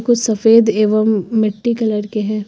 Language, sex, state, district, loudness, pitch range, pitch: Hindi, female, Uttar Pradesh, Lucknow, -15 LUFS, 215-225 Hz, 220 Hz